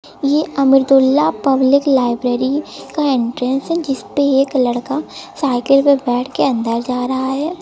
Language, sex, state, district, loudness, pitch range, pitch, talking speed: Hindi, female, Uttar Pradesh, Lucknow, -16 LUFS, 250-285 Hz, 270 Hz, 150 wpm